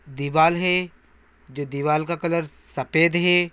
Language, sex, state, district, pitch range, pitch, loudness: Hindi, male, Bihar, Araria, 140-170 Hz, 160 Hz, -21 LUFS